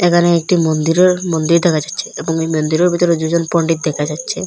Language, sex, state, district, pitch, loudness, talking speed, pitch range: Bengali, female, Assam, Hailakandi, 165 Hz, -15 LUFS, 190 wpm, 160-175 Hz